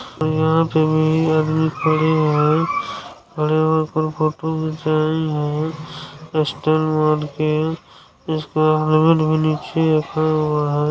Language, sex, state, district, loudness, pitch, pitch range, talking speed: Hindi, male, Bihar, Saran, -18 LUFS, 155 Hz, 155-160 Hz, 115 wpm